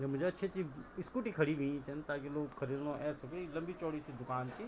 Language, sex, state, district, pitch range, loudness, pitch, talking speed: Garhwali, male, Uttarakhand, Tehri Garhwal, 140-175 Hz, -40 LUFS, 150 Hz, 230 wpm